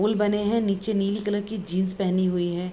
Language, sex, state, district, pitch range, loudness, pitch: Hindi, female, Bihar, Vaishali, 185-210 Hz, -25 LUFS, 200 Hz